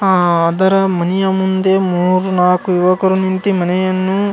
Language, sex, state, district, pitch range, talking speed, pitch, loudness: Kannada, male, Karnataka, Gulbarga, 180-190 Hz, 125 wpm, 185 Hz, -14 LUFS